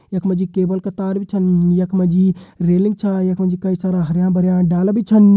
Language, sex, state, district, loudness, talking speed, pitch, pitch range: Hindi, male, Uttarakhand, Tehri Garhwal, -17 LUFS, 255 wpm, 185 Hz, 180-195 Hz